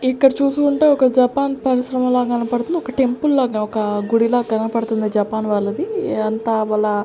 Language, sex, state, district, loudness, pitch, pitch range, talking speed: Telugu, female, Andhra Pradesh, Sri Satya Sai, -18 LUFS, 245 Hz, 220-270 Hz, 155 wpm